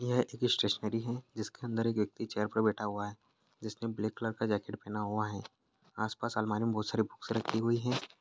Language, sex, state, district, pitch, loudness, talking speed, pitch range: Hindi, male, Chhattisgarh, Bastar, 110 Hz, -35 LUFS, 225 wpm, 105-115 Hz